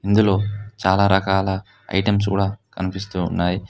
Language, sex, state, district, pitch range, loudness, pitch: Telugu, male, Telangana, Hyderabad, 95-100 Hz, -21 LUFS, 95 Hz